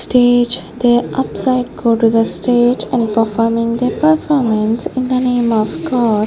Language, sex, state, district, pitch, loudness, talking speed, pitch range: English, female, Punjab, Fazilka, 240 Hz, -14 LUFS, 155 wpm, 225-255 Hz